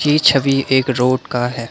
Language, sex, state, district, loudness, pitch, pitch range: Hindi, male, Assam, Kamrup Metropolitan, -16 LUFS, 130 Hz, 125-135 Hz